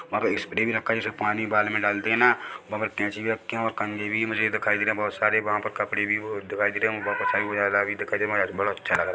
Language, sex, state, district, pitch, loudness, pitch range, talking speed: Hindi, male, Chhattisgarh, Bilaspur, 105 Hz, -25 LUFS, 105-110 Hz, 270 wpm